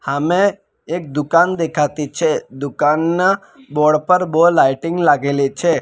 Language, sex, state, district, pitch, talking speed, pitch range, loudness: Gujarati, male, Gujarat, Valsad, 160 Hz, 125 wpm, 145-175 Hz, -16 LUFS